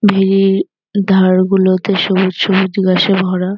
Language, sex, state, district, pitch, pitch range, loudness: Bengali, female, West Bengal, North 24 Parganas, 190 Hz, 185-195 Hz, -13 LUFS